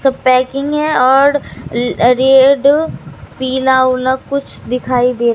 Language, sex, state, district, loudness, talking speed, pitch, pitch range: Hindi, female, Bihar, Katihar, -13 LUFS, 125 wpm, 260 Hz, 255-275 Hz